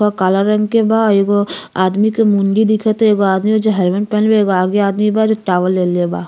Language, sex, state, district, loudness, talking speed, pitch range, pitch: Bhojpuri, female, Uttar Pradesh, Ghazipur, -14 LUFS, 230 wpm, 190-215 Hz, 205 Hz